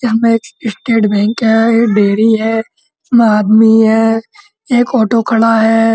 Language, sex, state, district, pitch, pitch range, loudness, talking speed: Hindi, male, Uttar Pradesh, Muzaffarnagar, 225 Hz, 220-235 Hz, -11 LUFS, 140 wpm